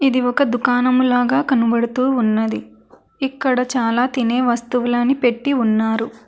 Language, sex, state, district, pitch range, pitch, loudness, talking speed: Telugu, female, Telangana, Hyderabad, 235-255 Hz, 245 Hz, -18 LUFS, 115 wpm